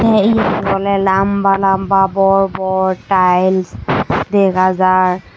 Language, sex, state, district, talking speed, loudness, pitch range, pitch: Chakma, female, Tripura, Unakoti, 110 wpm, -14 LUFS, 185-195 Hz, 195 Hz